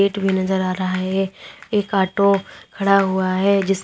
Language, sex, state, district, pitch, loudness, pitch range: Hindi, female, Uttar Pradesh, Lalitpur, 195 Hz, -19 LUFS, 190-200 Hz